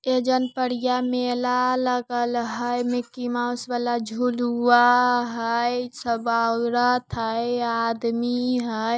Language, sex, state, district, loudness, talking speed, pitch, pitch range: Hindi, female, Bihar, Lakhisarai, -23 LUFS, 100 wpm, 245 Hz, 235-250 Hz